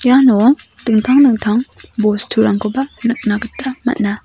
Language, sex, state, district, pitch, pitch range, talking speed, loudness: Garo, female, Meghalaya, South Garo Hills, 235 Hz, 215-260 Hz, 100 wpm, -14 LUFS